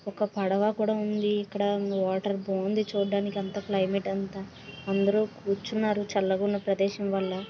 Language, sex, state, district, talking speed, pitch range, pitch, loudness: Telugu, female, Andhra Pradesh, Visakhapatnam, 135 wpm, 195-205 Hz, 200 Hz, -28 LUFS